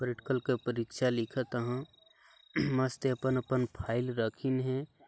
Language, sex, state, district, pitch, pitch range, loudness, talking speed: Chhattisgarhi, male, Chhattisgarh, Balrampur, 125 Hz, 120-130 Hz, -33 LUFS, 130 wpm